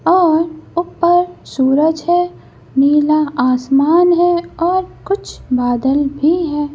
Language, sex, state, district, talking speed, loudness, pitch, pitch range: Hindi, female, Madhya Pradesh, Bhopal, 105 wpm, -15 LUFS, 315 Hz, 280-350 Hz